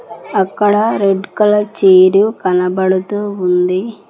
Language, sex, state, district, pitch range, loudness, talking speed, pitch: Telugu, female, Telangana, Mahabubabad, 185-205 Hz, -13 LUFS, 90 wpm, 195 Hz